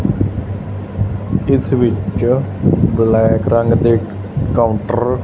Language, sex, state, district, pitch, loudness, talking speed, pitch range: Punjabi, male, Punjab, Fazilka, 110 Hz, -16 LUFS, 80 wpm, 100-120 Hz